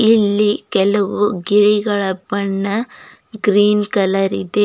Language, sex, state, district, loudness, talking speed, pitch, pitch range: Kannada, female, Karnataka, Bidar, -16 LUFS, 90 wpm, 205 Hz, 195-210 Hz